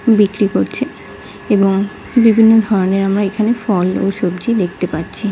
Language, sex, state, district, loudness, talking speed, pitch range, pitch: Bengali, female, West Bengal, Jhargram, -15 LUFS, 145 wpm, 190-225 Hz, 200 Hz